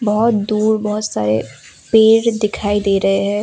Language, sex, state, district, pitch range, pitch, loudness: Hindi, female, Assam, Kamrup Metropolitan, 200-220 Hz, 210 Hz, -16 LUFS